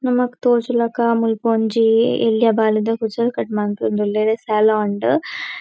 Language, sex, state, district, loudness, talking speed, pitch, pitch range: Tulu, female, Karnataka, Dakshina Kannada, -18 LUFS, 120 wpm, 225 Hz, 215-235 Hz